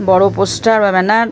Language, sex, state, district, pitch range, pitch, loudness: Bengali, female, West Bengal, Purulia, 190-220 Hz, 200 Hz, -12 LUFS